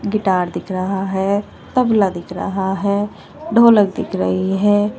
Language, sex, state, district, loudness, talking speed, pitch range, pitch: Hindi, female, Uttar Pradesh, Shamli, -17 LUFS, 145 wpm, 190-210 Hz, 200 Hz